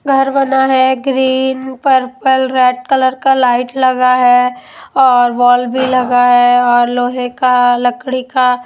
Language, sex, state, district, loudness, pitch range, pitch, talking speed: Hindi, female, Odisha, Malkangiri, -12 LUFS, 245-265 Hz, 255 Hz, 145 wpm